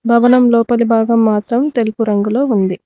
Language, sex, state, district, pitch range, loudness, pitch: Telugu, female, Telangana, Mahabubabad, 220-240 Hz, -13 LUFS, 230 Hz